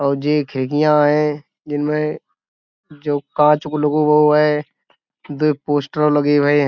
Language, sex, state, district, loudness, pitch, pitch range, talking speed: Hindi, male, Uttar Pradesh, Budaun, -17 LUFS, 150 Hz, 145-150 Hz, 145 wpm